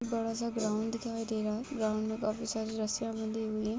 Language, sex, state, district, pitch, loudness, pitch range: Hindi, female, Bihar, Kishanganj, 220 Hz, -34 LUFS, 215-225 Hz